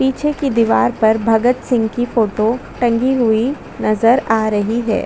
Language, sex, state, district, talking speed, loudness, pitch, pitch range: Hindi, female, Chhattisgarh, Bastar, 165 wpm, -16 LUFS, 230 Hz, 220-250 Hz